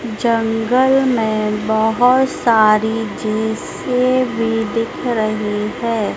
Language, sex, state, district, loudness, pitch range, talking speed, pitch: Hindi, female, Madhya Pradesh, Dhar, -16 LUFS, 215-245 Hz, 85 wpm, 225 Hz